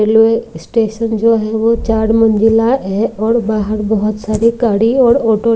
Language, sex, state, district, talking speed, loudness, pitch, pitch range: Hindi, female, Maharashtra, Mumbai Suburban, 160 wpm, -13 LUFS, 225 Hz, 215-230 Hz